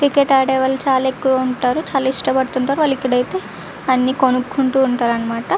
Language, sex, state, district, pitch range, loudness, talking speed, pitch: Telugu, female, Andhra Pradesh, Visakhapatnam, 250-265 Hz, -17 LUFS, 160 wpm, 260 Hz